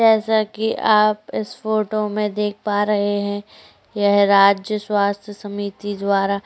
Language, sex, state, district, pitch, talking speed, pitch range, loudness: Hindi, female, Chhattisgarh, Korba, 205 Hz, 140 wpm, 205-215 Hz, -19 LUFS